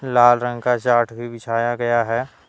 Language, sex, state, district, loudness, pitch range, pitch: Hindi, male, Jharkhand, Deoghar, -19 LUFS, 115-120 Hz, 120 Hz